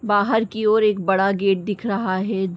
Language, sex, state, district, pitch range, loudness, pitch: Hindi, female, Uttar Pradesh, Ghazipur, 195-215 Hz, -20 LUFS, 200 Hz